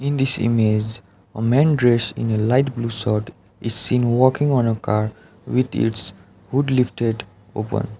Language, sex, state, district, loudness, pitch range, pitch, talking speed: English, male, Sikkim, Gangtok, -20 LUFS, 105-125 Hz, 115 Hz, 165 wpm